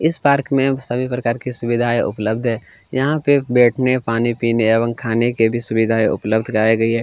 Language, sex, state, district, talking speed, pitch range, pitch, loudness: Hindi, male, Chhattisgarh, Kabirdham, 195 wpm, 115-130 Hz, 120 Hz, -18 LUFS